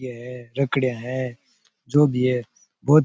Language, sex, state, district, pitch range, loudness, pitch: Rajasthani, male, Rajasthan, Churu, 125-135 Hz, -23 LUFS, 125 Hz